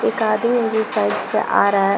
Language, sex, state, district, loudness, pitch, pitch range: Hindi, female, Uttar Pradesh, Shamli, -17 LUFS, 220 Hz, 200-230 Hz